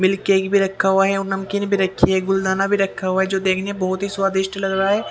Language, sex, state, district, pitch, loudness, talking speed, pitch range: Hindi, male, Haryana, Jhajjar, 195 Hz, -19 LUFS, 280 wpm, 190-195 Hz